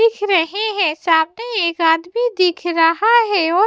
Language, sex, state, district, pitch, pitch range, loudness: Hindi, female, Bihar, West Champaran, 370 Hz, 330-440 Hz, -16 LUFS